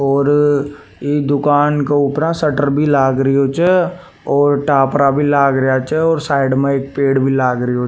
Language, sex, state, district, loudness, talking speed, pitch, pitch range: Rajasthani, male, Rajasthan, Nagaur, -14 LUFS, 185 wpm, 140 Hz, 135-145 Hz